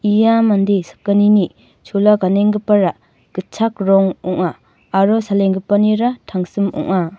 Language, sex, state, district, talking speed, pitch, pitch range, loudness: Garo, female, Meghalaya, North Garo Hills, 100 wpm, 200 Hz, 190-210 Hz, -16 LUFS